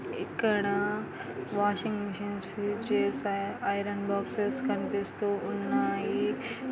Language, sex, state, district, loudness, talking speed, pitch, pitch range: Telugu, female, Andhra Pradesh, Anantapur, -31 LUFS, 55 wpm, 205 Hz, 200-205 Hz